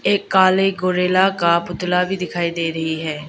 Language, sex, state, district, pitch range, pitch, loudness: Hindi, female, Arunachal Pradesh, Lower Dibang Valley, 170-185 Hz, 180 Hz, -18 LUFS